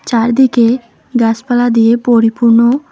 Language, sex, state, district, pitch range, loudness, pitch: Bengali, female, West Bengal, Alipurduar, 230-245 Hz, -11 LUFS, 235 Hz